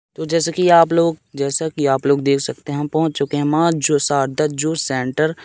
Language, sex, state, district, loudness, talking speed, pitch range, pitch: Hindi, male, Madhya Pradesh, Katni, -18 LUFS, 240 wpm, 140-160 Hz, 150 Hz